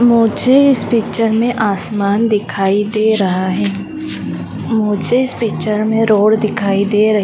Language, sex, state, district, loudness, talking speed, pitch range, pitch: Hindi, female, Madhya Pradesh, Dhar, -15 LUFS, 140 wpm, 205-230 Hz, 215 Hz